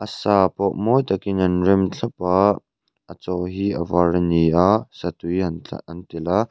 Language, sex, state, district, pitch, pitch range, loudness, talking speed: Mizo, male, Mizoram, Aizawl, 90 Hz, 85-100 Hz, -20 LUFS, 210 wpm